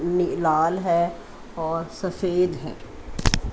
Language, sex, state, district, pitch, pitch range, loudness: Hindi, female, Chandigarh, Chandigarh, 170 Hz, 165-180 Hz, -24 LUFS